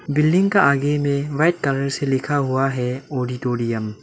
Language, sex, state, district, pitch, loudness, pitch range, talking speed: Hindi, male, Arunachal Pradesh, Lower Dibang Valley, 140 Hz, -20 LUFS, 125-145 Hz, 180 wpm